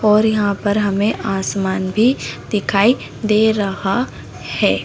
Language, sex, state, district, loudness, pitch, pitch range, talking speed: Hindi, female, Chhattisgarh, Bastar, -17 LUFS, 205 Hz, 195-215 Hz, 125 wpm